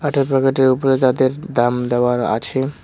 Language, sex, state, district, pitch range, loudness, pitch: Bengali, male, West Bengal, Cooch Behar, 125-135 Hz, -17 LUFS, 130 Hz